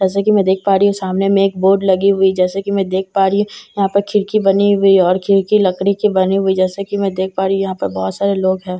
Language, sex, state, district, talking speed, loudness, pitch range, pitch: Hindi, female, Bihar, Katihar, 300 wpm, -15 LUFS, 190-200 Hz, 195 Hz